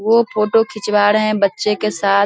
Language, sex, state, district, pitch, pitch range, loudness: Hindi, female, Bihar, Saharsa, 210 Hz, 205-215 Hz, -16 LUFS